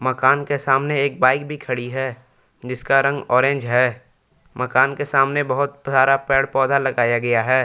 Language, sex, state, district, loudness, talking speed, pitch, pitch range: Hindi, male, Jharkhand, Palamu, -19 LUFS, 170 wpm, 130 Hz, 125-140 Hz